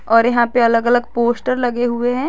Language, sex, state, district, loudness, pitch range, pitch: Hindi, female, Jharkhand, Garhwa, -16 LUFS, 235-245 Hz, 240 Hz